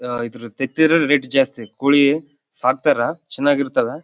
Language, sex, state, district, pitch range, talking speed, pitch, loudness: Kannada, male, Karnataka, Bellary, 125-145 Hz, 120 wpm, 140 Hz, -18 LUFS